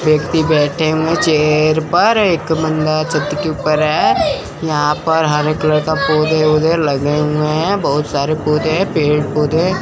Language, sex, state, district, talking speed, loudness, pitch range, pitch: Hindi, male, Chandigarh, Chandigarh, 185 wpm, -14 LUFS, 150-160 Hz, 155 Hz